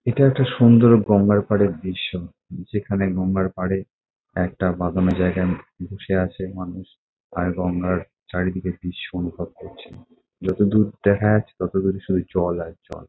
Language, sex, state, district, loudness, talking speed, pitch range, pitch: Bengali, male, West Bengal, Kolkata, -21 LUFS, 135 wpm, 90-100 Hz, 95 Hz